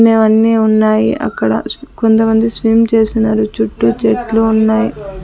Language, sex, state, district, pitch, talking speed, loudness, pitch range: Telugu, female, Andhra Pradesh, Sri Satya Sai, 220 Hz, 105 wpm, -12 LUFS, 215-225 Hz